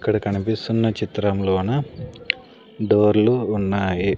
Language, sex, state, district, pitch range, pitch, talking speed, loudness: Telugu, male, Andhra Pradesh, Sri Satya Sai, 100-110 Hz, 105 Hz, 70 wpm, -21 LUFS